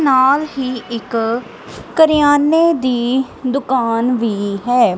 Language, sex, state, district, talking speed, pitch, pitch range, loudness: Punjabi, female, Punjab, Kapurthala, 95 wpm, 255 Hz, 235-280 Hz, -15 LUFS